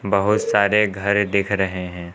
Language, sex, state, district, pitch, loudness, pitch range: Hindi, male, Uttar Pradesh, Lucknow, 100 Hz, -19 LUFS, 95-100 Hz